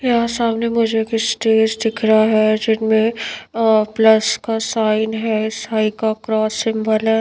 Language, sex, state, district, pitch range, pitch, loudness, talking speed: Hindi, female, Chhattisgarh, Raipur, 220-225 Hz, 220 Hz, -17 LUFS, 150 wpm